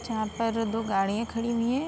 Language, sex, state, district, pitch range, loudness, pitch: Hindi, female, Uttar Pradesh, Budaun, 220-235 Hz, -28 LUFS, 225 Hz